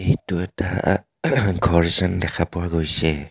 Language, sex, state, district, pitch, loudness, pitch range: Assamese, male, Assam, Kamrup Metropolitan, 90 Hz, -21 LUFS, 85-95 Hz